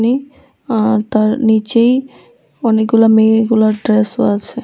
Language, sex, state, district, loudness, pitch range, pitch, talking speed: Bengali, female, Tripura, West Tripura, -13 LUFS, 215-245 Hz, 225 Hz, 105 wpm